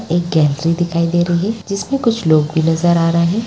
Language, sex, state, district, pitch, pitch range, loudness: Hindi, female, Bihar, Bhagalpur, 170 Hz, 165-200 Hz, -15 LUFS